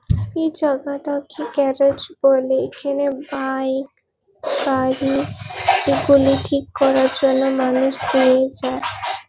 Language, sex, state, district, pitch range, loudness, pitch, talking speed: Bengali, female, West Bengal, Purulia, 265-280 Hz, -18 LUFS, 275 Hz, 95 wpm